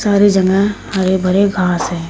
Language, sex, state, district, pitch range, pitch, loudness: Hindi, female, Uttar Pradesh, Shamli, 185-200 Hz, 190 Hz, -14 LUFS